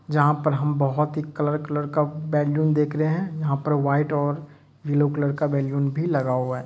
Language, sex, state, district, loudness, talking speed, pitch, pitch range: Hindi, male, Uttar Pradesh, Etah, -23 LUFS, 205 wpm, 150 Hz, 140-150 Hz